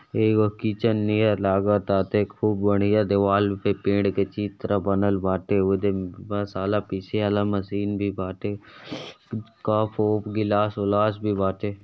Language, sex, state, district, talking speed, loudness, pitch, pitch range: Bhojpuri, male, Uttar Pradesh, Gorakhpur, 130 wpm, -24 LUFS, 100 Hz, 100-105 Hz